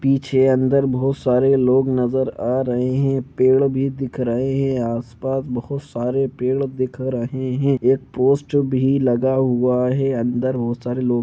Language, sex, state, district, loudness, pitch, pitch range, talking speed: Hindi, male, Jharkhand, Jamtara, -19 LUFS, 130 Hz, 125-135 Hz, 165 wpm